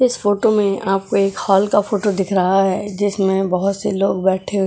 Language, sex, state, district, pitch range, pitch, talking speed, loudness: Hindi, female, Goa, North and South Goa, 195-205 Hz, 195 Hz, 220 wpm, -17 LUFS